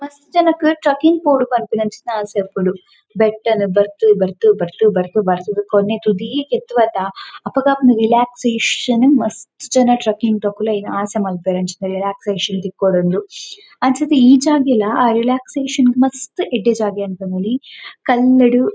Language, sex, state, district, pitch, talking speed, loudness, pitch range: Tulu, female, Karnataka, Dakshina Kannada, 225 Hz, 135 wpm, -16 LUFS, 205-265 Hz